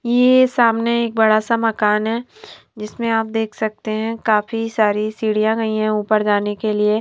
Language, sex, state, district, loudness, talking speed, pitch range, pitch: Hindi, female, Himachal Pradesh, Shimla, -18 LUFS, 180 wpm, 215-230 Hz, 220 Hz